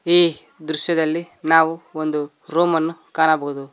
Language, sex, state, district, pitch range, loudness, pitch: Kannada, male, Karnataka, Koppal, 155-170 Hz, -19 LUFS, 160 Hz